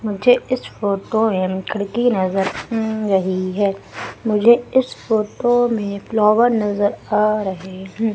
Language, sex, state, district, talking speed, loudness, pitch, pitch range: Hindi, female, Madhya Pradesh, Umaria, 140 wpm, -18 LUFS, 210 Hz, 195-230 Hz